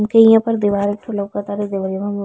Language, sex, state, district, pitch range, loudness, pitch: Bhojpuri, female, Bihar, East Champaran, 200-220 Hz, -17 LUFS, 205 Hz